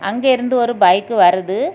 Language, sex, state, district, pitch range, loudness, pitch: Tamil, female, Tamil Nadu, Kanyakumari, 185-250 Hz, -14 LUFS, 230 Hz